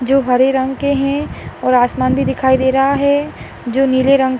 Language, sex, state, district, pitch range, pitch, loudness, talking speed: Hindi, female, Maharashtra, Aurangabad, 260-275 Hz, 265 Hz, -14 LUFS, 220 wpm